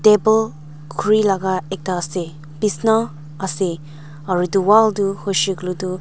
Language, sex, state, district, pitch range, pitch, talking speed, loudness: Nagamese, female, Nagaland, Dimapur, 165-205 Hz, 190 Hz, 130 wpm, -19 LUFS